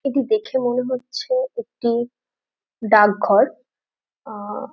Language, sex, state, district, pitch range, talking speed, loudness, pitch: Bengali, female, West Bengal, Dakshin Dinajpur, 220-275 Hz, 100 wpm, -20 LUFS, 250 Hz